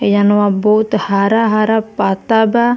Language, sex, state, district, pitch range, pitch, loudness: Bhojpuri, female, Bihar, Muzaffarpur, 205-220 Hz, 215 Hz, -13 LUFS